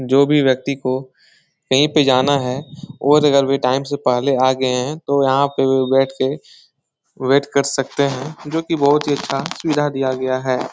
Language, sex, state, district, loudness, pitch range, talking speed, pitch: Hindi, male, Bihar, Supaul, -17 LUFS, 130-145 Hz, 195 wpm, 140 Hz